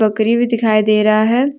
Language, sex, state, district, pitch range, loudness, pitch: Hindi, female, Jharkhand, Deoghar, 215-235 Hz, -14 LUFS, 220 Hz